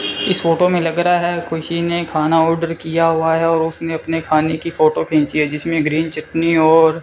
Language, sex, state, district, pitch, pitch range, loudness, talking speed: Hindi, male, Rajasthan, Bikaner, 165 Hz, 160-165 Hz, -16 LUFS, 220 wpm